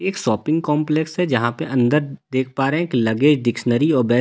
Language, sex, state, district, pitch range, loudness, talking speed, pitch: Hindi, male, Delhi, New Delhi, 120-155 Hz, -19 LUFS, 255 wpm, 140 Hz